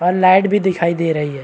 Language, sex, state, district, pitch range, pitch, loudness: Hindi, male, Bihar, Araria, 165-190 Hz, 175 Hz, -15 LUFS